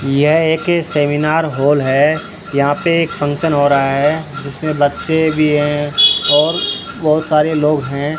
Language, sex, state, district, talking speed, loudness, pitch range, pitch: Hindi, male, Rajasthan, Bikaner, 155 wpm, -14 LUFS, 145-160 Hz, 150 Hz